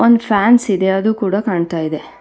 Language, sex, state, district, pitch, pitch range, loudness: Kannada, female, Karnataka, Bangalore, 195 Hz, 175-220 Hz, -15 LUFS